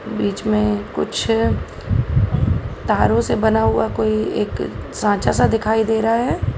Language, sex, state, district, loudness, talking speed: Hindi, female, Uttar Pradesh, Gorakhpur, -19 LUFS, 135 wpm